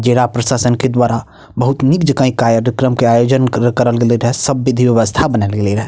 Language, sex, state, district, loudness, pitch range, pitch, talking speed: Maithili, male, Bihar, Purnia, -13 LUFS, 115-130 Hz, 120 Hz, 215 wpm